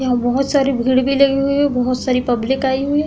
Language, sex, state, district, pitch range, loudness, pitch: Hindi, female, Uttar Pradesh, Deoria, 250-275 Hz, -16 LUFS, 265 Hz